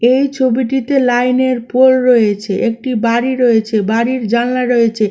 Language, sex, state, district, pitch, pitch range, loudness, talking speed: Bengali, female, West Bengal, Malda, 245 Hz, 230-255 Hz, -13 LUFS, 130 wpm